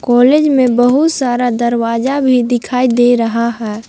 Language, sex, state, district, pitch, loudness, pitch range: Hindi, female, Jharkhand, Palamu, 245 Hz, -12 LUFS, 235-255 Hz